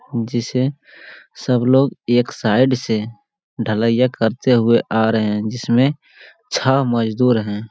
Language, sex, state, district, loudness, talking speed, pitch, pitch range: Hindi, male, Bihar, Jamui, -18 LUFS, 125 wpm, 120 Hz, 110-130 Hz